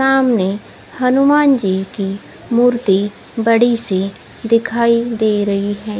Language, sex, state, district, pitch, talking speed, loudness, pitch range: Hindi, female, Odisha, Khordha, 230 Hz, 110 wpm, -15 LUFS, 200-240 Hz